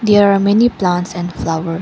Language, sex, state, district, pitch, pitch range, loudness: English, female, Arunachal Pradesh, Lower Dibang Valley, 185 Hz, 175-205 Hz, -15 LUFS